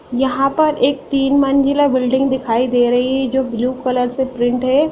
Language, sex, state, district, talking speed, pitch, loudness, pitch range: Hindi, female, Bihar, Sitamarhi, 195 wpm, 265 Hz, -16 LUFS, 250-275 Hz